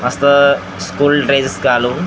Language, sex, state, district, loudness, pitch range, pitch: Marathi, male, Maharashtra, Gondia, -13 LUFS, 120-140 Hz, 135 Hz